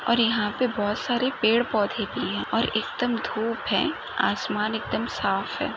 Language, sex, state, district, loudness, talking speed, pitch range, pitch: Hindi, female, Maharashtra, Chandrapur, -25 LUFS, 155 wpm, 215-245 Hz, 230 Hz